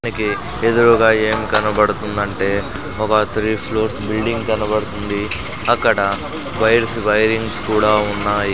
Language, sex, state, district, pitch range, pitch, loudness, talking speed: Telugu, male, Andhra Pradesh, Sri Satya Sai, 105-110 Hz, 110 Hz, -17 LUFS, 100 wpm